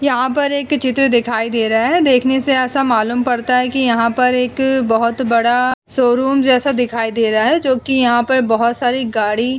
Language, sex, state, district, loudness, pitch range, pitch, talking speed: Hindi, female, Uttar Pradesh, Etah, -15 LUFS, 235-265 Hz, 250 Hz, 205 wpm